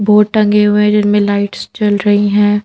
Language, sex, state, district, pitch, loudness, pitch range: Hindi, female, Madhya Pradesh, Bhopal, 210 Hz, -12 LUFS, 205-210 Hz